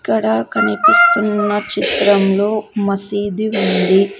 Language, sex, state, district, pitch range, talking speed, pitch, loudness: Telugu, female, Andhra Pradesh, Sri Satya Sai, 195-210 Hz, 70 wpm, 205 Hz, -15 LUFS